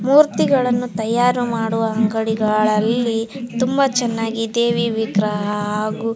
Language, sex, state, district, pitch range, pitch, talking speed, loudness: Kannada, female, Karnataka, Raichur, 220-245 Hz, 225 Hz, 105 wpm, -18 LUFS